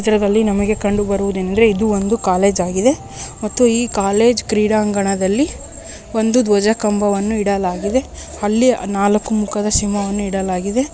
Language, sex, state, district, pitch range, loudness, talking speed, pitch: Kannada, female, Karnataka, Dharwad, 200-220 Hz, -16 LUFS, 120 wpm, 210 Hz